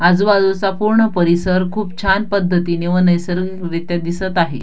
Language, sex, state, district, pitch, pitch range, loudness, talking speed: Marathi, female, Maharashtra, Dhule, 180 Hz, 175-195 Hz, -16 LUFS, 140 wpm